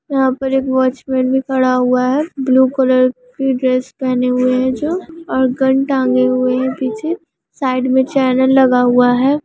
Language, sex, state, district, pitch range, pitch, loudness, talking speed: Hindi, female, Chhattisgarh, Jashpur, 255-270 Hz, 260 Hz, -15 LUFS, 180 wpm